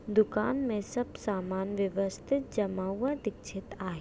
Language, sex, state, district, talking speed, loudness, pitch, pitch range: Hindi, female, Maharashtra, Aurangabad, 120 wpm, -32 LUFS, 205 Hz, 195-235 Hz